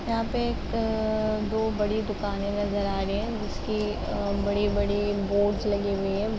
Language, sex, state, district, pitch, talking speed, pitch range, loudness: Hindi, female, Bihar, Gopalganj, 205 Hz, 170 wpm, 200-215 Hz, -27 LUFS